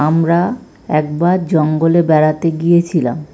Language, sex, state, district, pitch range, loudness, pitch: Bengali, male, West Bengal, North 24 Parganas, 155-170 Hz, -14 LUFS, 165 Hz